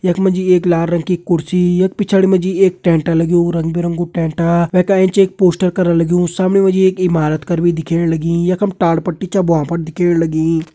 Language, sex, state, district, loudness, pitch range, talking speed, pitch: Hindi, male, Uttarakhand, Uttarkashi, -14 LUFS, 170-185 Hz, 230 wpm, 175 Hz